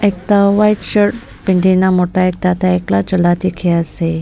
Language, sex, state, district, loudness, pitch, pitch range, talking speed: Nagamese, female, Nagaland, Dimapur, -14 LUFS, 185 Hz, 175-200 Hz, 170 wpm